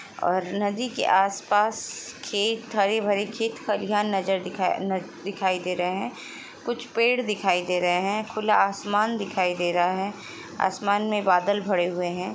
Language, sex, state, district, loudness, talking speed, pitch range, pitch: Hindi, female, Chhattisgarh, Sukma, -25 LUFS, 165 wpm, 185-210 Hz, 200 Hz